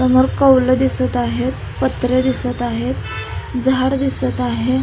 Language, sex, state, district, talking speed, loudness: Marathi, female, Maharashtra, Solapur, 125 wpm, -17 LUFS